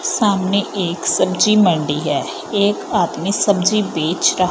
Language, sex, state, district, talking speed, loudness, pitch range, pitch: Hindi, female, Punjab, Fazilka, 135 wpm, -17 LUFS, 170-205 Hz, 190 Hz